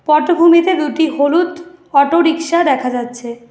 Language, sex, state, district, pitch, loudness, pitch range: Bengali, female, West Bengal, Alipurduar, 320 Hz, -13 LUFS, 280-340 Hz